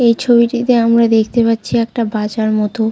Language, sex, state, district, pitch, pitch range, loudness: Bengali, female, West Bengal, Jalpaiguri, 230 Hz, 220-235 Hz, -14 LUFS